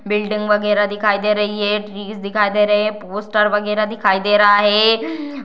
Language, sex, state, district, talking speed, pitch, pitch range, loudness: Hindi, female, Bihar, Darbhanga, 185 wpm, 210 Hz, 205-215 Hz, -16 LUFS